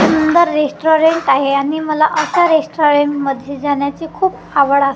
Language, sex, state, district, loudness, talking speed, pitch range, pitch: Marathi, female, Maharashtra, Gondia, -14 LUFS, 145 wpm, 280-315 Hz, 300 Hz